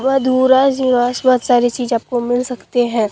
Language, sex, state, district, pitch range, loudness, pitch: Hindi, female, Bihar, Katihar, 245-260 Hz, -15 LUFS, 250 Hz